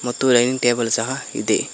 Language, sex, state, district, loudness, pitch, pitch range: Kannada, male, Karnataka, Koppal, -19 LUFS, 120 Hz, 120-130 Hz